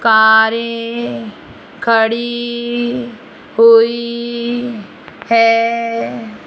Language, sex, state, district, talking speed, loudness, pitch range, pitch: Hindi, female, Rajasthan, Jaipur, 35 wpm, -14 LUFS, 225-235 Hz, 230 Hz